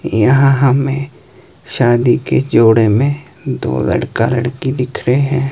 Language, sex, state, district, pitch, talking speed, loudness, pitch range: Hindi, male, Himachal Pradesh, Shimla, 125 Hz, 120 wpm, -14 LUFS, 120-135 Hz